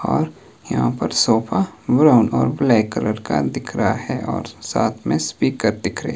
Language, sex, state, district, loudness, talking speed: Hindi, male, Himachal Pradesh, Shimla, -19 LUFS, 185 wpm